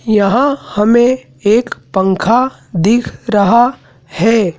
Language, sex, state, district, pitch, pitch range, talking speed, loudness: Hindi, male, Madhya Pradesh, Dhar, 225 Hz, 200-245 Hz, 90 wpm, -13 LUFS